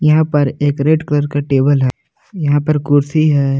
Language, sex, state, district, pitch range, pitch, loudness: Hindi, male, Jharkhand, Palamu, 140-155 Hz, 145 Hz, -14 LUFS